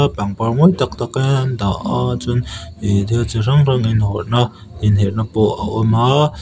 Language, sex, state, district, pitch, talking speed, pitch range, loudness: Mizo, male, Mizoram, Aizawl, 110 Hz, 170 wpm, 100-125 Hz, -17 LUFS